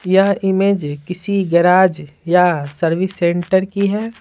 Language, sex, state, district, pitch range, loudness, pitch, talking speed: Hindi, female, Bihar, Patna, 170-195 Hz, -16 LUFS, 180 Hz, 130 wpm